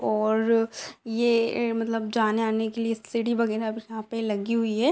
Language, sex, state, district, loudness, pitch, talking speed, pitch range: Hindi, female, Bihar, Muzaffarpur, -26 LUFS, 225 Hz, 170 wpm, 220-230 Hz